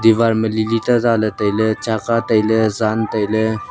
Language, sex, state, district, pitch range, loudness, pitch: Wancho, male, Arunachal Pradesh, Longding, 110-115 Hz, -17 LUFS, 110 Hz